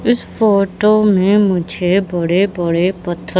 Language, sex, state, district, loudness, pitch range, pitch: Hindi, female, Madhya Pradesh, Katni, -14 LUFS, 175-205 Hz, 190 Hz